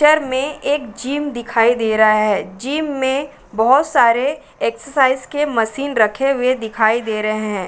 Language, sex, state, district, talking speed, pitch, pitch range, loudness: Hindi, female, Uttar Pradesh, Varanasi, 165 wpm, 255 Hz, 220-285 Hz, -17 LUFS